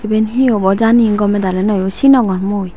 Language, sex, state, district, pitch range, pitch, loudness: Chakma, female, Tripura, Dhalai, 195-225 Hz, 205 Hz, -13 LUFS